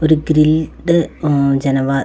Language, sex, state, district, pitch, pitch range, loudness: Malayalam, female, Kerala, Wayanad, 155 Hz, 135-160 Hz, -15 LUFS